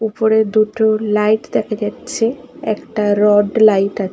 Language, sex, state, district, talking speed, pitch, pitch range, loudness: Bengali, female, West Bengal, Malda, 130 wpm, 215 Hz, 210-220 Hz, -16 LUFS